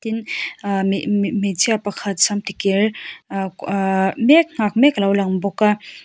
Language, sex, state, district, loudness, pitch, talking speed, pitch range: Mizo, female, Mizoram, Aizawl, -18 LUFS, 200 Hz, 170 wpm, 195-215 Hz